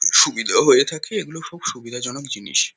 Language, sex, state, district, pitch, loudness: Bengali, male, West Bengal, Kolkata, 160 Hz, -19 LUFS